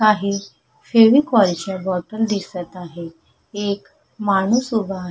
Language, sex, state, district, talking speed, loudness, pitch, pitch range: Marathi, female, Maharashtra, Sindhudurg, 115 wpm, -19 LUFS, 200 Hz, 185-220 Hz